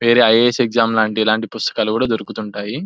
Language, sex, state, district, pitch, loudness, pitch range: Telugu, male, Telangana, Nalgonda, 110 Hz, -16 LUFS, 110-120 Hz